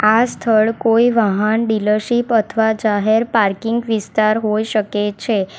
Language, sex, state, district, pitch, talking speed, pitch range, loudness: Gujarati, female, Gujarat, Valsad, 220 Hz, 130 wpm, 215-225 Hz, -16 LUFS